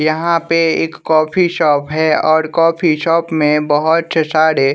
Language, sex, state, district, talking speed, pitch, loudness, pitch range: Hindi, male, Bihar, West Champaran, 165 wpm, 160 Hz, -14 LUFS, 155-165 Hz